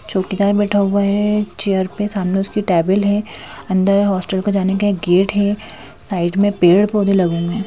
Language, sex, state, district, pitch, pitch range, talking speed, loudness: Hindi, female, Madhya Pradesh, Bhopal, 200 Hz, 190-205 Hz, 195 wpm, -16 LUFS